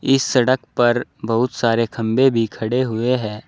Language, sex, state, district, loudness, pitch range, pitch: Hindi, male, Uttar Pradesh, Saharanpur, -19 LUFS, 115-125 Hz, 120 Hz